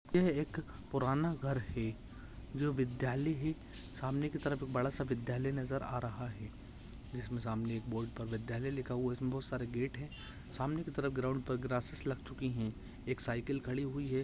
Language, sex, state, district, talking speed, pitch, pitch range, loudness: Hindi, male, Maharashtra, Aurangabad, 190 wpm, 130 Hz, 120-135 Hz, -38 LUFS